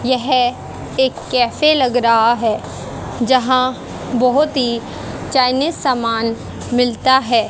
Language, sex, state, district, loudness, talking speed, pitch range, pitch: Hindi, female, Haryana, Jhajjar, -16 LUFS, 105 wpm, 235-260 Hz, 250 Hz